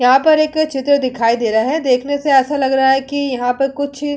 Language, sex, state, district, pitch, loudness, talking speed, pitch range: Hindi, female, Uttar Pradesh, Hamirpur, 270 Hz, -15 LUFS, 270 wpm, 255-285 Hz